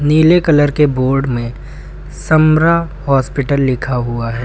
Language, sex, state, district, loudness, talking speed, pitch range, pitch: Hindi, male, Uttar Pradesh, Lucknow, -13 LUFS, 135 wpm, 120-150 Hz, 135 Hz